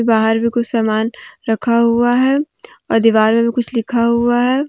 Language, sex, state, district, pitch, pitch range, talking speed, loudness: Hindi, female, Jharkhand, Deoghar, 235 Hz, 225-240 Hz, 190 wpm, -15 LUFS